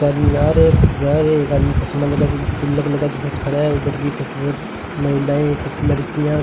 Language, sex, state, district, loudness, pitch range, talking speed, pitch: Hindi, male, Rajasthan, Bikaner, -18 LUFS, 140-145 Hz, 235 wpm, 145 Hz